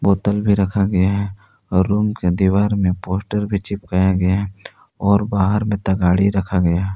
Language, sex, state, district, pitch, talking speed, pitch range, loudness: Hindi, male, Jharkhand, Palamu, 100 Hz, 190 wpm, 95-100 Hz, -18 LUFS